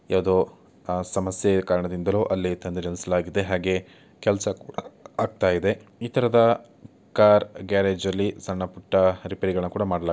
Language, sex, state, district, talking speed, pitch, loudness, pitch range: Kannada, male, Karnataka, Chamarajanagar, 120 wpm, 95 Hz, -24 LUFS, 90-100 Hz